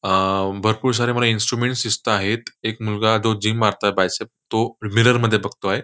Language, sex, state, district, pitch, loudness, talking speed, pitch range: Marathi, male, Maharashtra, Nagpur, 110 Hz, -20 LUFS, 165 wpm, 100-115 Hz